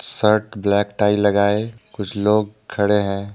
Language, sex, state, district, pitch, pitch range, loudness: Hindi, male, Jharkhand, Deoghar, 105 Hz, 100-105 Hz, -19 LUFS